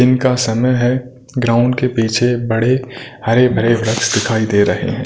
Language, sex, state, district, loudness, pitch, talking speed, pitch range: Hindi, male, Punjab, Kapurthala, -15 LUFS, 120 Hz, 180 wpm, 115-125 Hz